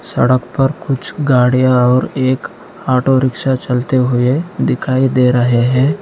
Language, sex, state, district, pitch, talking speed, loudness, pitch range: Hindi, male, Arunachal Pradesh, Lower Dibang Valley, 130 Hz, 140 wpm, -14 LUFS, 125-135 Hz